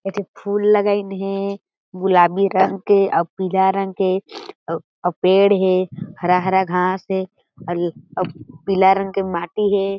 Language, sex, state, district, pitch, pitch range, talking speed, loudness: Chhattisgarhi, female, Chhattisgarh, Jashpur, 190 Hz, 185-195 Hz, 145 wpm, -19 LUFS